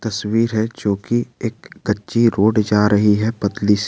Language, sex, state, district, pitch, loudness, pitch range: Hindi, male, Jharkhand, Garhwa, 105 Hz, -18 LUFS, 105-115 Hz